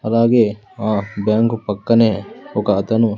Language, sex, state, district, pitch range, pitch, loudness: Telugu, male, Andhra Pradesh, Sri Satya Sai, 105-115 Hz, 110 Hz, -17 LUFS